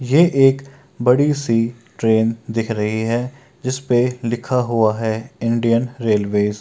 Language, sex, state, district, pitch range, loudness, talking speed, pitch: Maithili, male, Bihar, Kishanganj, 110-130 Hz, -18 LUFS, 135 wpm, 120 Hz